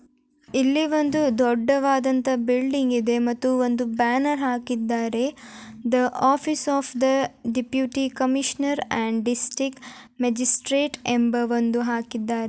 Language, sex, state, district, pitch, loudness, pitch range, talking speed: Kannada, male, Karnataka, Dharwad, 255 Hz, -23 LUFS, 240-270 Hz, 95 wpm